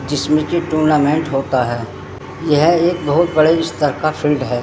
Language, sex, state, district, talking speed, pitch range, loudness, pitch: Hindi, male, Uttarakhand, Tehri Garhwal, 170 wpm, 130-160 Hz, -16 LUFS, 150 Hz